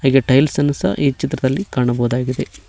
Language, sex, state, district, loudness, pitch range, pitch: Kannada, male, Karnataka, Koppal, -17 LUFS, 130-145 Hz, 135 Hz